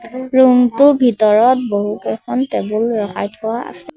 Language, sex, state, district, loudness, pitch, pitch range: Assamese, male, Assam, Sonitpur, -15 LUFS, 240 Hz, 215-255 Hz